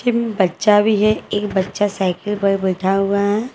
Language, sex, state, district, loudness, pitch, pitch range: Hindi, female, Jharkhand, Garhwa, -18 LUFS, 205 Hz, 190-210 Hz